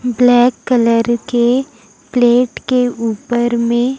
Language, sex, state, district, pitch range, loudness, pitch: Hindi, female, Chhattisgarh, Raipur, 235-250 Hz, -14 LUFS, 245 Hz